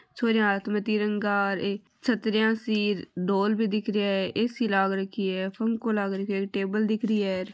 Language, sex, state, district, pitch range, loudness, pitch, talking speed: Marwari, female, Rajasthan, Nagaur, 195-220 Hz, -26 LUFS, 205 Hz, 190 wpm